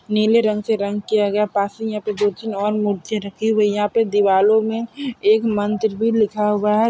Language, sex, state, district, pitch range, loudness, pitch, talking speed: Hindi, male, Bihar, Purnia, 205-220 Hz, -19 LUFS, 210 Hz, 245 wpm